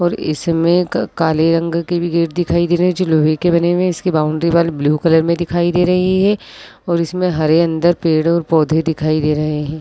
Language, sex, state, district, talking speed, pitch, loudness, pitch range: Hindi, female, Uttar Pradesh, Muzaffarnagar, 240 wpm, 170 Hz, -15 LUFS, 160-175 Hz